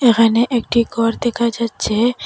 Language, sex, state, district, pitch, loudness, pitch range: Bengali, female, Assam, Hailakandi, 235 Hz, -17 LUFS, 230-240 Hz